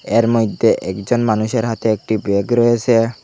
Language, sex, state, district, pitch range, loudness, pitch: Bengali, male, Assam, Hailakandi, 110-120 Hz, -16 LUFS, 115 Hz